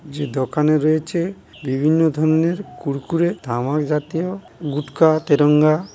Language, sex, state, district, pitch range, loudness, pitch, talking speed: Bengali, male, West Bengal, Dakshin Dinajpur, 145-165 Hz, -19 LUFS, 155 Hz, 100 wpm